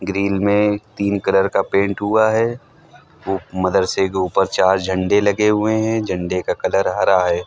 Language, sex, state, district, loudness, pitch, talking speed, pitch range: Hindi, male, Uttar Pradesh, Hamirpur, -18 LUFS, 100 Hz, 175 wpm, 95-105 Hz